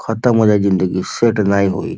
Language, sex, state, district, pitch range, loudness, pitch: Bhojpuri, male, Uttar Pradesh, Varanasi, 100-110 Hz, -15 LUFS, 100 Hz